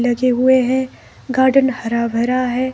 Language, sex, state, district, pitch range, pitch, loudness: Hindi, female, Himachal Pradesh, Shimla, 245-260 Hz, 255 Hz, -16 LUFS